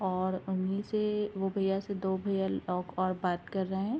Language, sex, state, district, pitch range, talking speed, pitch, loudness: Hindi, female, Uttar Pradesh, Ghazipur, 185-200 Hz, 210 wpm, 190 Hz, -32 LUFS